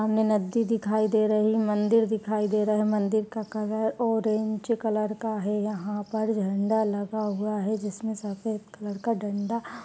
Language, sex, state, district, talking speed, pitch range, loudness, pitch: Hindi, female, Uttar Pradesh, Etah, 175 wpm, 210-220 Hz, -27 LUFS, 215 Hz